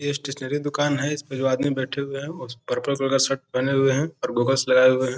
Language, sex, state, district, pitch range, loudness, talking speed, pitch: Hindi, male, Bihar, Gopalganj, 130-145 Hz, -23 LUFS, 255 wpm, 135 Hz